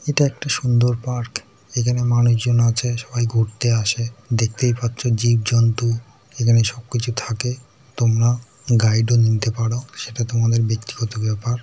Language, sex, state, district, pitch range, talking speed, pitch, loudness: Bengali, male, West Bengal, North 24 Parganas, 115-120 Hz, 135 wpm, 120 Hz, -20 LUFS